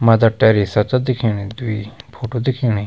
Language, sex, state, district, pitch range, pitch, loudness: Garhwali, male, Uttarakhand, Tehri Garhwal, 105-125 Hz, 115 Hz, -17 LUFS